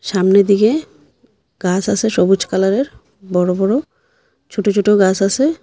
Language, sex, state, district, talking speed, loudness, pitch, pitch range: Bengali, female, Assam, Hailakandi, 130 wpm, -15 LUFS, 200 Hz, 190-265 Hz